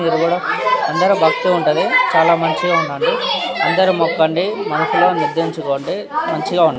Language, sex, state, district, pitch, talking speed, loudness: Telugu, male, Telangana, Nalgonda, 185 Hz, 105 wpm, -16 LUFS